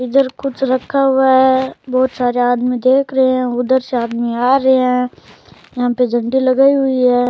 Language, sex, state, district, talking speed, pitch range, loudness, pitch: Rajasthani, male, Rajasthan, Churu, 190 wpm, 245-265 Hz, -15 LUFS, 255 Hz